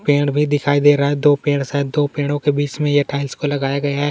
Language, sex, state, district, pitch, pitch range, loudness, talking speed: Hindi, male, Chhattisgarh, Kabirdham, 145 Hz, 140-145 Hz, -17 LUFS, 305 wpm